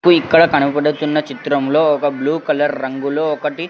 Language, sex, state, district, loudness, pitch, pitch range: Telugu, male, Andhra Pradesh, Sri Satya Sai, -16 LUFS, 150 Hz, 140-155 Hz